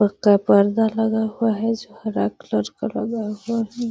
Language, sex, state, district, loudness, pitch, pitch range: Magahi, female, Bihar, Gaya, -21 LUFS, 220 Hz, 210-225 Hz